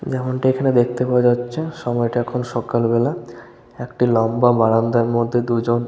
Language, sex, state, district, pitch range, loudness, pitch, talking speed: Bengali, male, West Bengal, Malda, 120-125 Hz, -18 LUFS, 120 Hz, 145 wpm